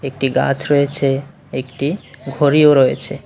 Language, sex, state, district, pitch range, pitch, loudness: Bengali, male, Tripura, West Tripura, 135-145 Hz, 140 Hz, -16 LUFS